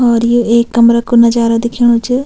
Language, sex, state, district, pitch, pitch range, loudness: Garhwali, female, Uttarakhand, Tehri Garhwal, 235 Hz, 235-240 Hz, -10 LUFS